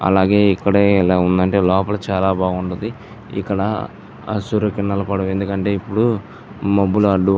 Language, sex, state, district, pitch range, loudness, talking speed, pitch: Telugu, male, Andhra Pradesh, Chittoor, 95-100 Hz, -18 LUFS, 120 wpm, 100 Hz